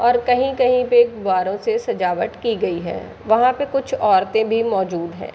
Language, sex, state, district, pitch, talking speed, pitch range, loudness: Hindi, female, Bihar, Madhepura, 230 Hz, 180 wpm, 190-250 Hz, -19 LUFS